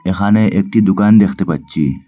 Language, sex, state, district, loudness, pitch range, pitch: Bengali, male, Assam, Hailakandi, -13 LUFS, 80-105 Hz, 95 Hz